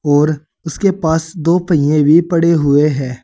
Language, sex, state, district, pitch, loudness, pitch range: Hindi, male, Uttar Pradesh, Saharanpur, 160 Hz, -14 LUFS, 145-170 Hz